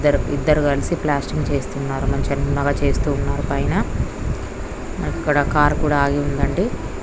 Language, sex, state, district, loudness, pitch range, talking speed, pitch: Telugu, female, Andhra Pradesh, Krishna, -21 LUFS, 140-145 Hz, 120 wpm, 145 Hz